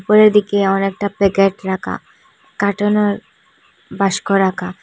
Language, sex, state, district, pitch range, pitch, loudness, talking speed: Bengali, female, Assam, Hailakandi, 195-205 Hz, 195 Hz, -16 LUFS, 100 wpm